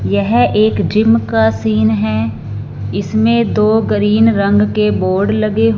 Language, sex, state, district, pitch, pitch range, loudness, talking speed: Hindi, female, Punjab, Fazilka, 110 Hz, 105-120 Hz, -13 LUFS, 135 wpm